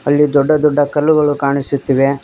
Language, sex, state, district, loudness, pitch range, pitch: Kannada, male, Karnataka, Koppal, -14 LUFS, 140-150 Hz, 145 Hz